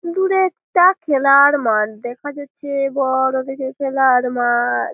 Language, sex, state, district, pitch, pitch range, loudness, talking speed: Bengali, female, West Bengal, Malda, 275 Hz, 250-290 Hz, -16 LUFS, 120 wpm